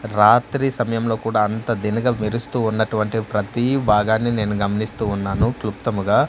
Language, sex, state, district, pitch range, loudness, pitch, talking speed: Telugu, male, Andhra Pradesh, Manyam, 105-120 Hz, -20 LUFS, 110 Hz, 125 wpm